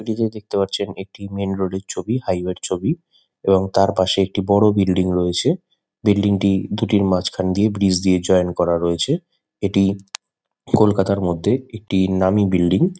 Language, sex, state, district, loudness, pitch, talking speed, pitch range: Bengali, male, West Bengal, Kolkata, -19 LUFS, 100 Hz, 165 wpm, 95-105 Hz